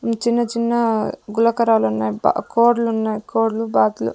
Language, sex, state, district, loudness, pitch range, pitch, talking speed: Telugu, female, Andhra Pradesh, Sri Satya Sai, -19 LUFS, 210-235 Hz, 225 Hz, 160 wpm